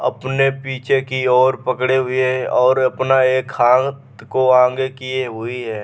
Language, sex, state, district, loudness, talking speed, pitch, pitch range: Hindi, male, Bihar, Vaishali, -17 LUFS, 145 wpm, 130 Hz, 125-130 Hz